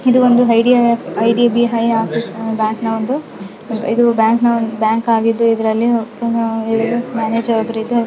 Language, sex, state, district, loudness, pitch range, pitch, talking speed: Kannada, female, Karnataka, Mysore, -15 LUFS, 225-235 Hz, 230 Hz, 120 wpm